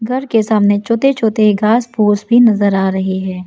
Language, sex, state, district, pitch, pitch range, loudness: Hindi, female, Arunachal Pradesh, Lower Dibang Valley, 215 Hz, 200-230 Hz, -13 LUFS